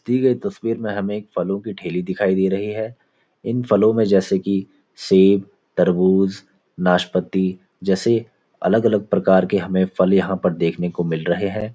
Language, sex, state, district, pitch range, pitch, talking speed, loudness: Hindi, male, Uttarakhand, Uttarkashi, 95-105 Hz, 95 Hz, 175 wpm, -19 LUFS